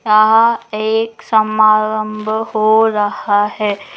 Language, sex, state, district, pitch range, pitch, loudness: Magahi, female, Bihar, Gaya, 215-220 Hz, 215 Hz, -14 LUFS